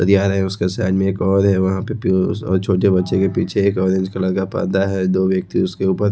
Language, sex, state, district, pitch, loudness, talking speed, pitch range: Hindi, male, Odisha, Khordha, 95 Hz, -18 LUFS, 265 wpm, 95-100 Hz